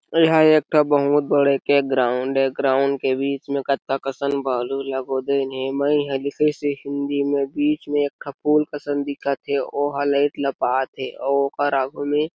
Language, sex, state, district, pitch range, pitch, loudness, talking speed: Chhattisgarhi, male, Chhattisgarh, Sarguja, 135-145 Hz, 140 Hz, -21 LUFS, 115 wpm